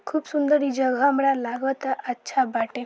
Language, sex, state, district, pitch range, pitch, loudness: Bhojpuri, female, Bihar, Saran, 250-280 Hz, 270 Hz, -23 LUFS